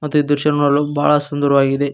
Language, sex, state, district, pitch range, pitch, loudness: Kannada, male, Karnataka, Koppal, 140-150 Hz, 145 Hz, -16 LUFS